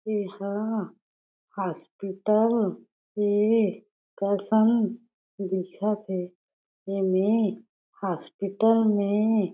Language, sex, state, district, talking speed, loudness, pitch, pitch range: Chhattisgarhi, female, Chhattisgarh, Jashpur, 65 wpm, -26 LUFS, 205 Hz, 195-220 Hz